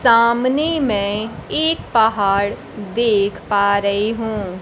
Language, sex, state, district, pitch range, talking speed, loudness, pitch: Hindi, female, Bihar, Kaimur, 200-235 Hz, 105 wpm, -18 LUFS, 215 Hz